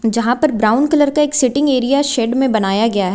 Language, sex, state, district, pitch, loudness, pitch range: Hindi, female, Uttar Pradesh, Lucknow, 255 Hz, -15 LUFS, 225-285 Hz